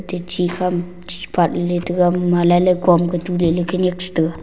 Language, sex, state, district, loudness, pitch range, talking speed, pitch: Wancho, male, Arunachal Pradesh, Longding, -18 LUFS, 175-180 Hz, 150 wpm, 175 Hz